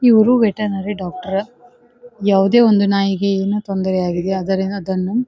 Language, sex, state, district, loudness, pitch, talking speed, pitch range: Kannada, female, Karnataka, Dharwad, -17 LUFS, 200 Hz, 135 wpm, 190-230 Hz